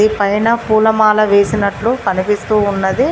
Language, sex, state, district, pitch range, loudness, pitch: Telugu, female, Telangana, Mahabubabad, 200-220 Hz, -13 LUFS, 215 Hz